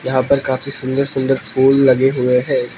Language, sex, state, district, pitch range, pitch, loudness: Hindi, male, Manipur, Imphal West, 130-135 Hz, 130 Hz, -15 LUFS